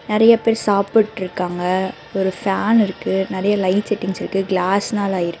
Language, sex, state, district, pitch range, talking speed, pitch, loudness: Tamil, female, Karnataka, Bangalore, 185-210 Hz, 145 wpm, 195 Hz, -18 LUFS